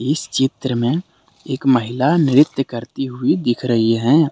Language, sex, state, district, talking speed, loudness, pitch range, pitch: Hindi, male, Jharkhand, Deoghar, 155 wpm, -18 LUFS, 120-145 Hz, 130 Hz